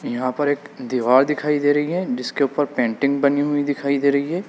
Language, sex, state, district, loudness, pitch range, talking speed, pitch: Hindi, male, Uttar Pradesh, Lalitpur, -20 LUFS, 140-145 Hz, 225 wpm, 145 Hz